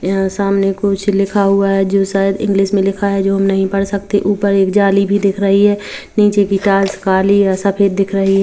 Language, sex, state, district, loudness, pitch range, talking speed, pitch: Hindi, female, Chhattisgarh, Kabirdham, -14 LUFS, 195-200 Hz, 230 wpm, 195 Hz